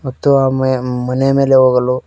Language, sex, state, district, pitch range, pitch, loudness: Kannada, male, Karnataka, Koppal, 125-135 Hz, 130 Hz, -13 LUFS